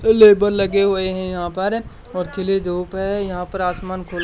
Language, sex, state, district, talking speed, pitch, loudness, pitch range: Hindi, male, Haryana, Charkhi Dadri, 195 wpm, 190 Hz, -19 LUFS, 180-200 Hz